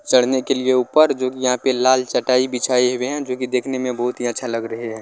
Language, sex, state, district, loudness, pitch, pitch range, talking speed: Maithili, male, Bihar, Vaishali, -19 LUFS, 125 Hz, 125-130 Hz, 275 wpm